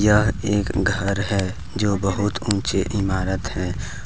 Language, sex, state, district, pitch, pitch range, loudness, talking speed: Hindi, male, Jharkhand, Deoghar, 100 Hz, 95-105 Hz, -22 LUFS, 120 wpm